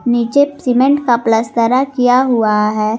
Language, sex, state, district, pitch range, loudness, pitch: Hindi, female, Jharkhand, Garhwa, 225-265 Hz, -13 LUFS, 240 Hz